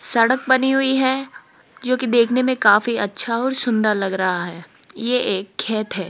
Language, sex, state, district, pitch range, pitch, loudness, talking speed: Hindi, female, Rajasthan, Jaipur, 205-255 Hz, 235 Hz, -19 LUFS, 185 wpm